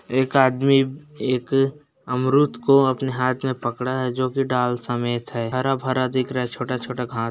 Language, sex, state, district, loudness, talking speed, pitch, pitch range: Hindi, male, Uttarakhand, Uttarkashi, -22 LUFS, 205 wpm, 130 Hz, 125-135 Hz